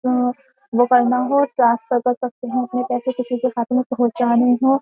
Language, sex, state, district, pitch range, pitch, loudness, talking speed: Hindi, female, Uttar Pradesh, Jyotiba Phule Nagar, 245-255 Hz, 250 Hz, -19 LUFS, 185 wpm